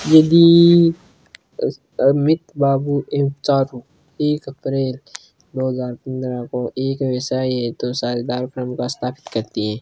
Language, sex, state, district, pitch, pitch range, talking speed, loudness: Hindi, male, Rajasthan, Churu, 130 Hz, 125-145 Hz, 105 wpm, -18 LUFS